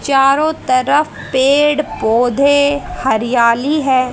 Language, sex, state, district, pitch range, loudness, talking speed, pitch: Hindi, female, Haryana, Charkhi Dadri, 250-285 Hz, -14 LUFS, 85 wpm, 270 Hz